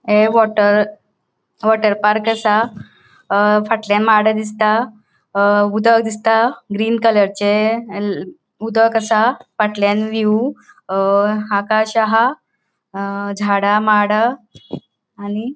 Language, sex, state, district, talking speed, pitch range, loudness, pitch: Konkani, female, Goa, North and South Goa, 105 wpm, 205-225 Hz, -16 LUFS, 215 Hz